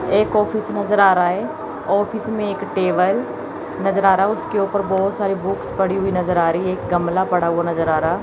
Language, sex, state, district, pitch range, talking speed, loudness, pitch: Hindi, female, Chandigarh, Chandigarh, 180-205 Hz, 235 wpm, -19 LUFS, 195 Hz